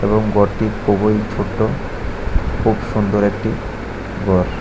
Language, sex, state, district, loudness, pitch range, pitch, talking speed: Bengali, male, Tripura, West Tripura, -19 LUFS, 100-110 Hz, 105 Hz, 105 wpm